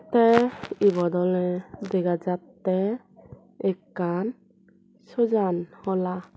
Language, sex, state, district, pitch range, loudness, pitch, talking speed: Chakma, female, Tripura, Dhalai, 180-215 Hz, -25 LUFS, 190 Hz, 75 wpm